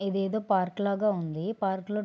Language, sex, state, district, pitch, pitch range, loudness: Telugu, female, Andhra Pradesh, Srikakulam, 200 Hz, 190-210 Hz, -29 LUFS